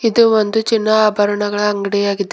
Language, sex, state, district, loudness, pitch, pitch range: Kannada, female, Karnataka, Bidar, -15 LUFS, 210 Hz, 205-220 Hz